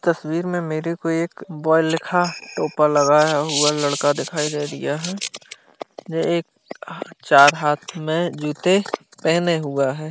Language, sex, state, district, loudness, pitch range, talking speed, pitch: Hindi, male, Bihar, Kishanganj, -20 LUFS, 150-170 Hz, 150 wpm, 155 Hz